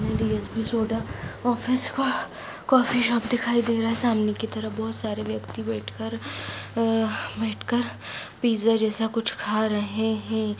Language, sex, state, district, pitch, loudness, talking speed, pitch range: Hindi, female, Chhattisgarh, Sarguja, 220 Hz, -25 LUFS, 140 wpm, 210-230 Hz